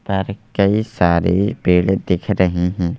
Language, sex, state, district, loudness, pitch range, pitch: Hindi, male, Madhya Pradesh, Bhopal, -17 LUFS, 90-100 Hz, 95 Hz